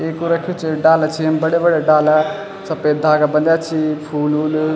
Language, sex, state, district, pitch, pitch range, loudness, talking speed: Garhwali, male, Uttarakhand, Tehri Garhwal, 155 Hz, 155-165 Hz, -16 LUFS, 200 wpm